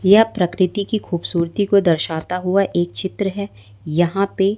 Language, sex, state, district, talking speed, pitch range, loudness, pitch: Hindi, female, Madhya Pradesh, Umaria, 155 wpm, 175-200 Hz, -19 LUFS, 185 Hz